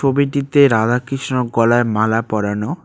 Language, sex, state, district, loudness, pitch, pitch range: Bengali, male, West Bengal, Cooch Behar, -16 LUFS, 125 Hz, 110-140 Hz